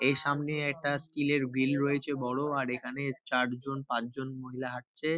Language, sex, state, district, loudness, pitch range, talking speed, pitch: Bengali, male, West Bengal, North 24 Parganas, -32 LUFS, 125-145 Hz, 175 wpm, 135 Hz